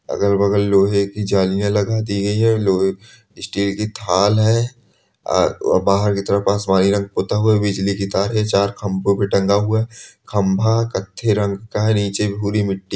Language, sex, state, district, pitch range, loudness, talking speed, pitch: Hindi, male, Bihar, Supaul, 100-105 Hz, -18 LUFS, 190 wpm, 100 Hz